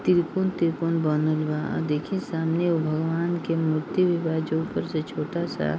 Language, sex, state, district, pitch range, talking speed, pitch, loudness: Bhojpuri, female, Bihar, East Champaran, 155-170 Hz, 175 wpm, 165 Hz, -25 LUFS